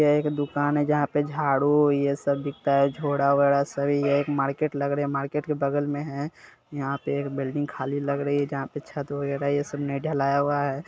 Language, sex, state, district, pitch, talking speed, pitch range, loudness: Hindi, male, Bihar, Sitamarhi, 140 Hz, 225 wpm, 140-145 Hz, -25 LUFS